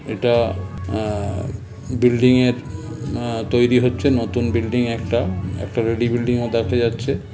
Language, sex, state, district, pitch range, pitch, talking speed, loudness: Bengali, male, West Bengal, North 24 Parganas, 110-125 Hz, 115 Hz, 140 wpm, -20 LUFS